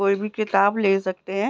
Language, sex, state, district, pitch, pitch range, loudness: Hindi, female, Bihar, Begusarai, 200 Hz, 195-210 Hz, -22 LUFS